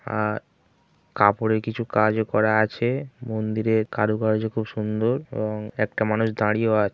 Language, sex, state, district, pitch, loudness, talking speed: Bengali, male, West Bengal, Kolkata, 110 Hz, -23 LUFS, 155 wpm